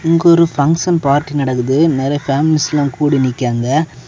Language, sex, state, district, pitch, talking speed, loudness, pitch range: Tamil, male, Tamil Nadu, Kanyakumari, 145 Hz, 145 wpm, -14 LUFS, 135-160 Hz